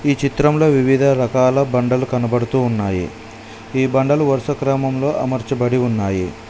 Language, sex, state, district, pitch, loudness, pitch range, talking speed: Telugu, male, Telangana, Mahabubabad, 130 Hz, -17 LUFS, 120-140 Hz, 120 wpm